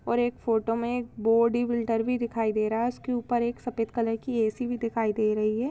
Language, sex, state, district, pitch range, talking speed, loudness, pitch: Hindi, female, Goa, North and South Goa, 225-240 Hz, 220 wpm, -27 LUFS, 230 Hz